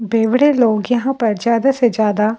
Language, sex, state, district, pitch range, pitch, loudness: Hindi, female, Delhi, New Delhi, 220-250 Hz, 230 Hz, -15 LUFS